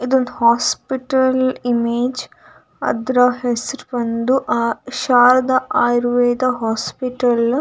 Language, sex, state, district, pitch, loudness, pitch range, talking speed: Kannada, female, Karnataka, Dakshina Kannada, 250 Hz, -17 LUFS, 240-255 Hz, 95 wpm